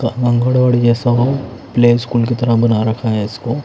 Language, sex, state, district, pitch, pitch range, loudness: Hindi, male, Odisha, Khordha, 120 Hz, 115-120 Hz, -15 LUFS